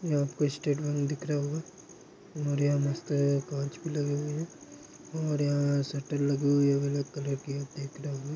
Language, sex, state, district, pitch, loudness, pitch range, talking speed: Hindi, male, Uttar Pradesh, Hamirpur, 145 Hz, -30 LUFS, 140-150 Hz, 170 wpm